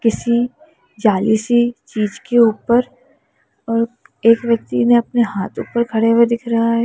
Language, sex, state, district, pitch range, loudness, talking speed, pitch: Hindi, female, Uttar Pradesh, Lalitpur, 225-240 Hz, -17 LUFS, 150 wpm, 235 Hz